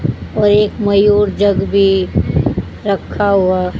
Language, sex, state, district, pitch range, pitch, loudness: Hindi, female, Haryana, Charkhi Dadri, 195-205 Hz, 200 Hz, -14 LUFS